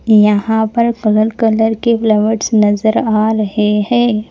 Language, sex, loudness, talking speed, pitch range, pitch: Hindi, female, -13 LUFS, 140 wpm, 215-225 Hz, 220 Hz